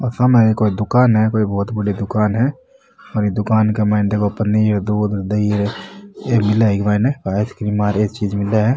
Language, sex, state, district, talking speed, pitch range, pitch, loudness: Marwari, male, Rajasthan, Nagaur, 210 wpm, 105-115 Hz, 105 Hz, -17 LUFS